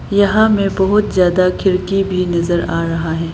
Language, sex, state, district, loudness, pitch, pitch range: Hindi, female, Arunachal Pradesh, Lower Dibang Valley, -15 LUFS, 185 Hz, 170-200 Hz